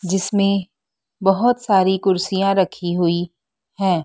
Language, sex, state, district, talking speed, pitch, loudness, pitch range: Hindi, female, Madhya Pradesh, Dhar, 105 wpm, 190 Hz, -19 LUFS, 180-195 Hz